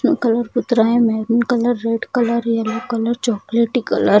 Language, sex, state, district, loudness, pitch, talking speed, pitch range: Hindi, female, Bihar, Bhagalpur, -18 LUFS, 235 Hz, 140 wpm, 230-240 Hz